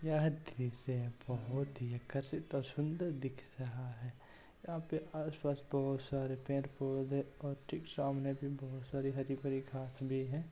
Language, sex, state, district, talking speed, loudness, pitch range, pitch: Hindi, male, Bihar, East Champaran, 150 wpm, -41 LUFS, 130-145 Hz, 135 Hz